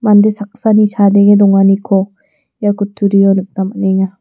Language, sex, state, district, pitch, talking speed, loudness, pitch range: Garo, female, Meghalaya, West Garo Hills, 200 Hz, 100 wpm, -11 LUFS, 195-205 Hz